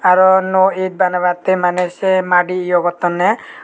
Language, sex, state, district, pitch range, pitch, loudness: Chakma, male, Tripura, Unakoti, 180-185 Hz, 180 Hz, -15 LUFS